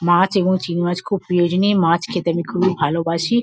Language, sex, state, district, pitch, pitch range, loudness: Bengali, female, West Bengal, Kolkata, 180 Hz, 170-190 Hz, -18 LUFS